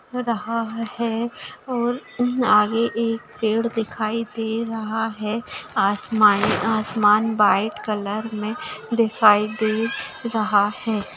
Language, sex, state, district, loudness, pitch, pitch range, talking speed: Hindi, female, Maharashtra, Nagpur, -22 LUFS, 225 Hz, 215-230 Hz, 105 wpm